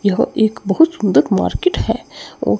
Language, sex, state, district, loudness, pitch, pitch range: Hindi, male, Chandigarh, Chandigarh, -16 LUFS, 205 Hz, 195-230 Hz